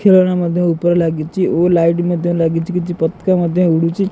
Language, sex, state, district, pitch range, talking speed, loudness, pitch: Odia, male, Odisha, Khordha, 170-180 Hz, 160 wpm, -15 LUFS, 175 Hz